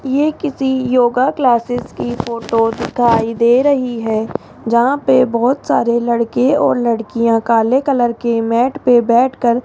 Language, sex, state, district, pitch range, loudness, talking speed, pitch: Hindi, female, Rajasthan, Jaipur, 235-260 Hz, -15 LUFS, 150 wpm, 245 Hz